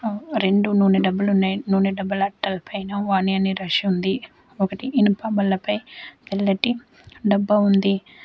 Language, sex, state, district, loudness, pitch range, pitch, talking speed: Telugu, female, Telangana, Adilabad, -21 LUFS, 195-210 Hz, 200 Hz, 140 wpm